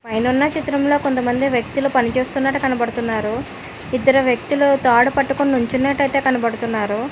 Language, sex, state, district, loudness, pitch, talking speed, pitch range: Telugu, female, Telangana, Hyderabad, -18 LUFS, 260 Hz, 100 wpm, 240-275 Hz